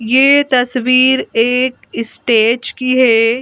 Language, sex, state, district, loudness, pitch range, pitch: Hindi, female, Madhya Pradesh, Bhopal, -12 LUFS, 230-255 Hz, 250 Hz